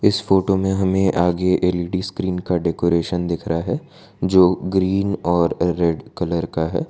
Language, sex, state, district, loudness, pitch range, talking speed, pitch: Hindi, male, Gujarat, Valsad, -20 LUFS, 85-95 Hz, 165 wpm, 90 Hz